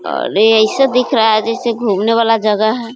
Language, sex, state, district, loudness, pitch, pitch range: Hindi, female, Bihar, East Champaran, -13 LUFS, 225 Hz, 215-240 Hz